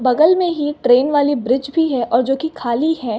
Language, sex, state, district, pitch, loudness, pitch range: Hindi, female, Uttar Pradesh, Gorakhpur, 275 Hz, -16 LUFS, 245-310 Hz